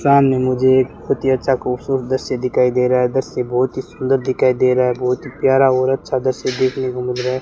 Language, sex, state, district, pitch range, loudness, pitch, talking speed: Hindi, male, Rajasthan, Bikaner, 125-130 Hz, -17 LUFS, 130 Hz, 250 wpm